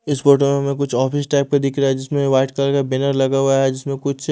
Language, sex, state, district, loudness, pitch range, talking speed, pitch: Hindi, male, Odisha, Malkangiri, -18 LUFS, 135-140 Hz, 290 wpm, 140 Hz